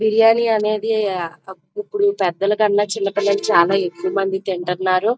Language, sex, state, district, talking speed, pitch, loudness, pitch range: Telugu, female, Andhra Pradesh, Krishna, 105 wpm, 200 Hz, -18 LUFS, 185-220 Hz